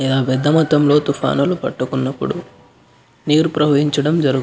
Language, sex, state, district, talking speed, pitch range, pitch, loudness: Telugu, male, Andhra Pradesh, Anantapur, 110 wpm, 135-150 Hz, 145 Hz, -16 LUFS